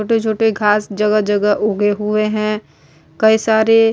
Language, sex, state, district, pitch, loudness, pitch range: Hindi, female, Uttar Pradesh, Etah, 215 Hz, -15 LUFS, 205-220 Hz